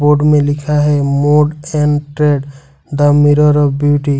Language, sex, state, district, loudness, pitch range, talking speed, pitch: Hindi, male, Jharkhand, Ranchi, -12 LUFS, 145-150 Hz, 155 wpm, 145 Hz